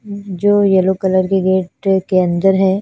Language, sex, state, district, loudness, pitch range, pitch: Hindi, female, Punjab, Fazilka, -14 LUFS, 185-195 Hz, 190 Hz